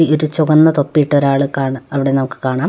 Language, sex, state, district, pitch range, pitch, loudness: Malayalam, female, Kerala, Wayanad, 135-155 Hz, 140 Hz, -14 LUFS